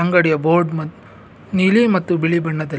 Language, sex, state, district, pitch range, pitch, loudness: Kannada, male, Karnataka, Bangalore, 155-175 Hz, 165 Hz, -17 LUFS